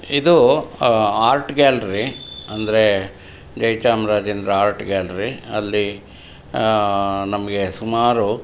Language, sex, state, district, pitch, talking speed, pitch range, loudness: Kannada, male, Karnataka, Mysore, 105 Hz, 85 wpm, 100-115 Hz, -18 LUFS